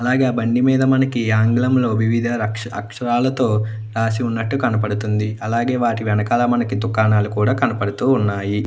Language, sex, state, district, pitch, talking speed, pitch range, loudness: Telugu, male, Andhra Pradesh, Anantapur, 115 Hz, 110 wpm, 110-125 Hz, -18 LUFS